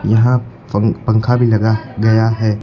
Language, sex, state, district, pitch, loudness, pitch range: Hindi, male, Uttar Pradesh, Lucknow, 110 Hz, -15 LUFS, 110-120 Hz